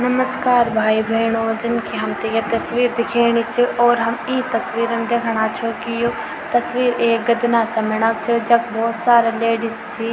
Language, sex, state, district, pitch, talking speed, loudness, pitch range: Garhwali, female, Uttarakhand, Tehri Garhwal, 230 Hz, 180 wpm, -18 LUFS, 230-235 Hz